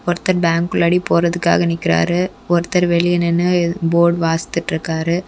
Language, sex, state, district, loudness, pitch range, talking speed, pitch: Tamil, female, Tamil Nadu, Kanyakumari, -16 LUFS, 165-175 Hz, 125 wpm, 170 Hz